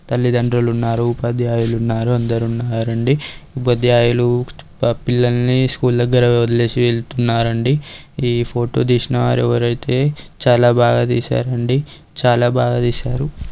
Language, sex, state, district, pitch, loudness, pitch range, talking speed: Telugu, male, Telangana, Karimnagar, 120 Hz, -16 LUFS, 115-125 Hz, 100 wpm